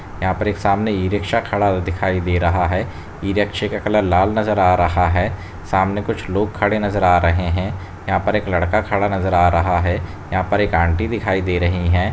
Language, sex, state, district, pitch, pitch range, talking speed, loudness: Hindi, male, Bihar, Gaya, 95 Hz, 90-105 Hz, 215 wpm, -18 LUFS